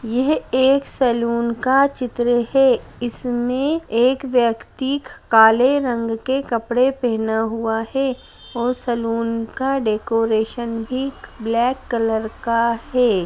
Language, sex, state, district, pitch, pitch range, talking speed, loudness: Hindi, female, Chhattisgarh, Raigarh, 240 Hz, 230-260 Hz, 120 wpm, -19 LUFS